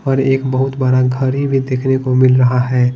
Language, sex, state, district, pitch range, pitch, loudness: Hindi, male, Bihar, Patna, 130-135 Hz, 130 Hz, -14 LUFS